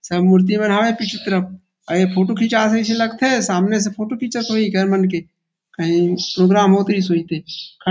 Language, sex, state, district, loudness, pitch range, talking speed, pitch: Chhattisgarhi, male, Chhattisgarh, Rajnandgaon, -17 LUFS, 180-220 Hz, 205 wpm, 190 Hz